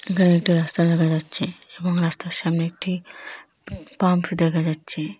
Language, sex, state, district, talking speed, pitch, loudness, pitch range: Bengali, female, Assam, Hailakandi, 140 wpm, 175 Hz, -19 LUFS, 165-185 Hz